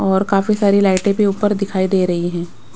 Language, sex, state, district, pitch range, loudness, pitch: Hindi, female, Bihar, West Champaran, 180-200 Hz, -16 LUFS, 195 Hz